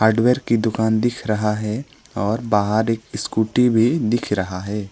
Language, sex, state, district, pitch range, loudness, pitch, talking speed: Hindi, male, West Bengal, Alipurduar, 105-115 Hz, -20 LUFS, 110 Hz, 160 wpm